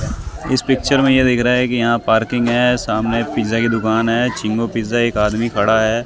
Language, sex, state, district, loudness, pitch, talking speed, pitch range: Hindi, male, Delhi, New Delhi, -16 LUFS, 115 Hz, 215 wpm, 110-125 Hz